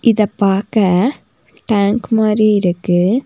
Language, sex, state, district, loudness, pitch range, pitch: Tamil, female, Tamil Nadu, Nilgiris, -14 LUFS, 195-225 Hz, 210 Hz